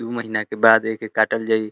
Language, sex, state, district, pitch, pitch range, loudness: Bhojpuri, male, Uttar Pradesh, Deoria, 110 Hz, 110-115 Hz, -19 LUFS